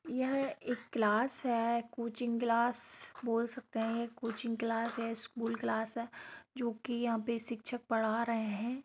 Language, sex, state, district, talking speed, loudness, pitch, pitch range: Hindi, female, Bihar, Darbhanga, 155 wpm, -36 LUFS, 235 Hz, 230-240 Hz